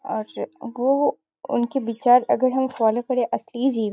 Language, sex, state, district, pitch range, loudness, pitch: Hindi, female, Bihar, Sitamarhi, 235-265 Hz, -22 LUFS, 245 Hz